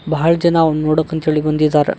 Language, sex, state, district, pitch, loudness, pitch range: Kannada, male, Karnataka, Koppal, 155 Hz, -15 LUFS, 155-165 Hz